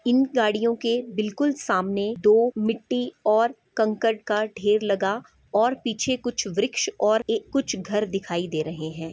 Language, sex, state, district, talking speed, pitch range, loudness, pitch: Hindi, female, Chhattisgarh, Bastar, 165 wpm, 200-235 Hz, -24 LUFS, 215 Hz